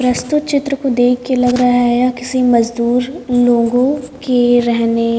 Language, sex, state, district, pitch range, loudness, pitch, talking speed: Hindi, female, Haryana, Jhajjar, 240-255 Hz, -14 LUFS, 245 Hz, 175 wpm